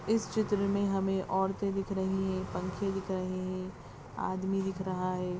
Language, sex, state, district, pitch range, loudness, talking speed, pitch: Hindi, female, Maharashtra, Aurangabad, 185-195 Hz, -33 LUFS, 175 wpm, 190 Hz